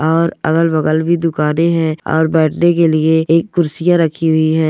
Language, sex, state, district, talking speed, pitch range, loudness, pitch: Hindi, male, Bihar, Sitamarhi, 180 wpm, 155-165 Hz, -14 LUFS, 160 Hz